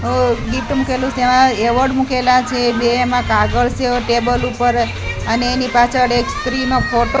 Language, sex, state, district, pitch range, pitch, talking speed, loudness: Gujarati, female, Gujarat, Gandhinagar, 240-255 Hz, 250 Hz, 150 wpm, -15 LUFS